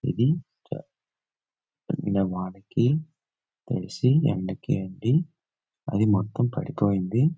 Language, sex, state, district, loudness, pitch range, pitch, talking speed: Telugu, male, Karnataka, Bellary, -26 LUFS, 100-150 Hz, 125 Hz, 75 wpm